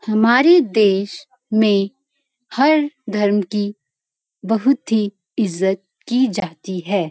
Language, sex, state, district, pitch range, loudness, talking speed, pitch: Hindi, female, Uttarakhand, Uttarkashi, 195-255 Hz, -18 LUFS, 100 wpm, 215 Hz